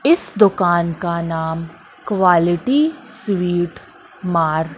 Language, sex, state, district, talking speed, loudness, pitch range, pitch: Hindi, female, Madhya Pradesh, Katni, 90 wpm, -18 LUFS, 165-210 Hz, 175 Hz